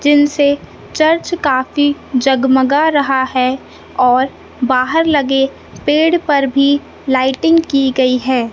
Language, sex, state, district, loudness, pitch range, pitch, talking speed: Hindi, male, Madhya Pradesh, Katni, -14 LUFS, 260-290 Hz, 275 Hz, 115 wpm